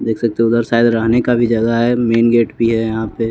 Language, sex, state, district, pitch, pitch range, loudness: Hindi, male, Bihar, West Champaran, 115 Hz, 115-120 Hz, -14 LUFS